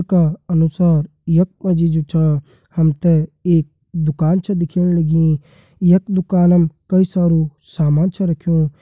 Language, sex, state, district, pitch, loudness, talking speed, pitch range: Garhwali, male, Uttarakhand, Tehri Garhwal, 165 Hz, -16 LUFS, 130 wpm, 155-180 Hz